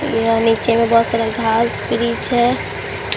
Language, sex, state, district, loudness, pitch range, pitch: Hindi, female, Bihar, Katihar, -16 LUFS, 225-235 Hz, 230 Hz